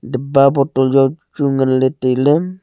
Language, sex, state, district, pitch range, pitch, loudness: Wancho, male, Arunachal Pradesh, Longding, 130-145 Hz, 135 Hz, -15 LUFS